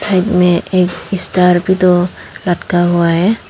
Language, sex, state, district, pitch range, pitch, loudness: Hindi, female, Tripura, Dhalai, 175-190 Hz, 180 Hz, -13 LUFS